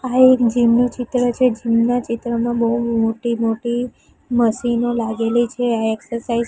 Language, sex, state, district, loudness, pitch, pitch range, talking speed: Gujarati, female, Gujarat, Gandhinagar, -18 LUFS, 235 Hz, 230-245 Hz, 165 wpm